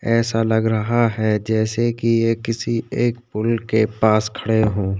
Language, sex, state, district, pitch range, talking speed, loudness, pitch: Hindi, male, Uttarakhand, Tehri Garhwal, 110-115 Hz, 170 wpm, -19 LUFS, 110 Hz